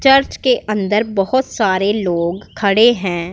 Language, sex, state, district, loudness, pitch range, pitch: Hindi, female, Punjab, Pathankot, -16 LUFS, 185-240 Hz, 205 Hz